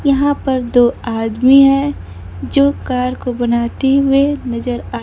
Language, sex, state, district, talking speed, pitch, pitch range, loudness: Hindi, female, Bihar, Kaimur, 145 wpm, 250 Hz, 235-275 Hz, -14 LUFS